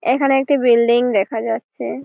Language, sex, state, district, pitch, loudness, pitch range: Bengali, female, West Bengal, Malda, 245 Hz, -17 LUFS, 230-270 Hz